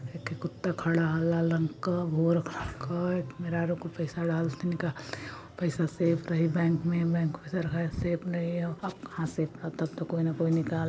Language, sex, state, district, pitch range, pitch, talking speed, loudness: Hindi, female, Uttar Pradesh, Varanasi, 160-170 Hz, 165 Hz, 185 wpm, -30 LUFS